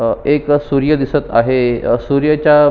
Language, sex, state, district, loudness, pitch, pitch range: Marathi, male, Maharashtra, Sindhudurg, -14 LUFS, 145 Hz, 125-150 Hz